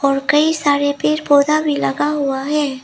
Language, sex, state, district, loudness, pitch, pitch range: Hindi, female, Arunachal Pradesh, Lower Dibang Valley, -16 LUFS, 290 Hz, 280-300 Hz